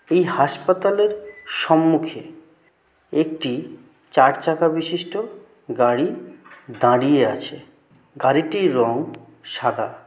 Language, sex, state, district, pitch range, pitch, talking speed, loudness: Bengali, male, West Bengal, Jalpaiguri, 155-180 Hz, 160 Hz, 70 wpm, -20 LUFS